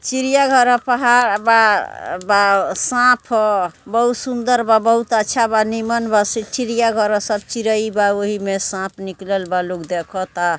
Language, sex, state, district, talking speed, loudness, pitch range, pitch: Bhojpuri, female, Bihar, East Champaran, 155 wpm, -17 LUFS, 195-235 Hz, 220 Hz